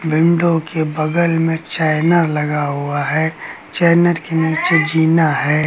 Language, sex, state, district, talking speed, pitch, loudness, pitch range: Hindi, male, Uttar Pradesh, Lucknow, 135 wpm, 160 Hz, -16 LUFS, 155-165 Hz